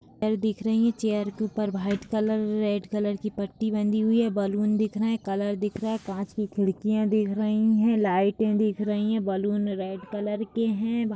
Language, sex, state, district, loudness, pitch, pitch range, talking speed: Hindi, female, Bihar, Saran, -26 LUFS, 210 Hz, 205-220 Hz, 225 wpm